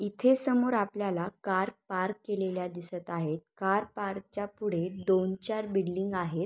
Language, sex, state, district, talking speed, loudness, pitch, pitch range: Marathi, female, Maharashtra, Sindhudurg, 150 wpm, -31 LUFS, 195 Hz, 185-205 Hz